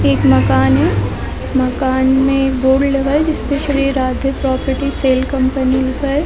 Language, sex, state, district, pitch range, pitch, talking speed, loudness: Hindi, female, Chhattisgarh, Balrampur, 255-275 Hz, 265 Hz, 165 wpm, -15 LUFS